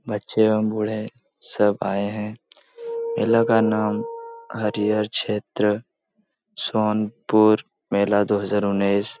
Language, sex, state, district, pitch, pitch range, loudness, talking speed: Hindi, male, Bihar, Lakhisarai, 110 Hz, 105-115 Hz, -22 LUFS, 105 wpm